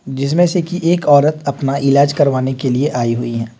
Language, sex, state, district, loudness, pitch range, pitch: Hindi, male, Jharkhand, Deoghar, -15 LUFS, 130-150 Hz, 140 Hz